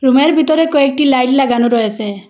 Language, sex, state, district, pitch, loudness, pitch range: Bengali, female, Assam, Hailakandi, 265 Hz, -12 LUFS, 235-290 Hz